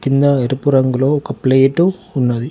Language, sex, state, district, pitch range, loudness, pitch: Telugu, male, Telangana, Hyderabad, 130-145 Hz, -15 LUFS, 135 Hz